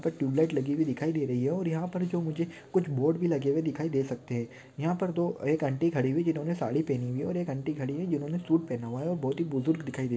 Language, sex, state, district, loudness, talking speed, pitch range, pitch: Hindi, male, Maharashtra, Pune, -30 LUFS, 295 wpm, 135-170 Hz, 155 Hz